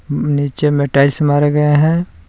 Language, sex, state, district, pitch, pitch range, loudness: Hindi, male, Jharkhand, Palamu, 145 Hz, 140-150 Hz, -14 LUFS